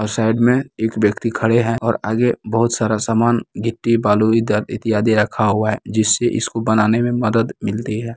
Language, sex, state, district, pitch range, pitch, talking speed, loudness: Hindi, male, Bihar, Bhagalpur, 110-115 Hz, 115 Hz, 190 wpm, -17 LUFS